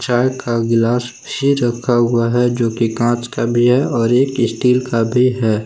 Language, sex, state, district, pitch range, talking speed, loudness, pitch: Hindi, male, Jharkhand, Palamu, 115-125 Hz, 200 wpm, -16 LUFS, 120 Hz